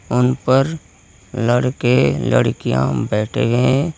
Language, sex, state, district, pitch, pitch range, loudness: Hindi, male, Uttar Pradesh, Saharanpur, 125 Hz, 105-130 Hz, -17 LUFS